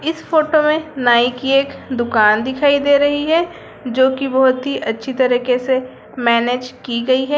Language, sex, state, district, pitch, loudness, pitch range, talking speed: Hindi, female, Bihar, Sitamarhi, 260 Hz, -16 LUFS, 245-285 Hz, 180 wpm